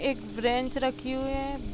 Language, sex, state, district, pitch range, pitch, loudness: Hindi, female, Jharkhand, Sahebganj, 255-275 Hz, 265 Hz, -30 LUFS